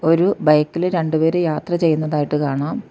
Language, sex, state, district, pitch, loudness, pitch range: Malayalam, female, Kerala, Kollam, 160 Hz, -18 LUFS, 150-170 Hz